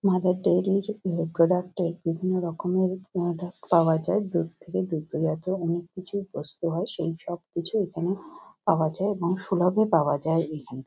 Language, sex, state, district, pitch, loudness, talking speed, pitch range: Bengali, female, West Bengal, Kolkata, 175 Hz, -27 LUFS, 165 wpm, 165-185 Hz